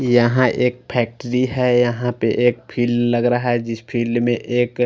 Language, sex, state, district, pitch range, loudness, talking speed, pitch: Hindi, male, Punjab, Fazilka, 120-125 Hz, -19 LUFS, 200 wpm, 120 Hz